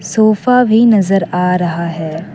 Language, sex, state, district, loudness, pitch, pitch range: Hindi, female, Assam, Kamrup Metropolitan, -12 LUFS, 185 Hz, 170-220 Hz